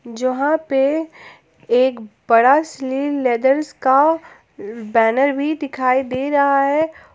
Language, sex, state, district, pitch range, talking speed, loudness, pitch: Hindi, female, Jharkhand, Palamu, 255-290 Hz, 110 wpm, -17 LUFS, 270 Hz